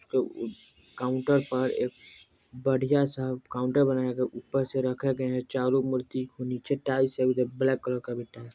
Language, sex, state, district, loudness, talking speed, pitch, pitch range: Bajjika, male, Bihar, Vaishali, -28 LUFS, 180 wpm, 130 Hz, 125-130 Hz